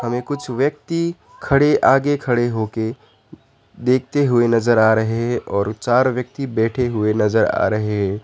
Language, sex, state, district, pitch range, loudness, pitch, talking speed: Hindi, male, West Bengal, Alipurduar, 110-135 Hz, -18 LUFS, 120 Hz, 165 wpm